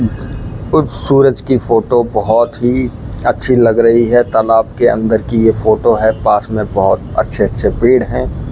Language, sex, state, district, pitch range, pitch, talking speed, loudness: Hindi, male, Rajasthan, Bikaner, 110-120 Hz, 115 Hz, 170 wpm, -12 LUFS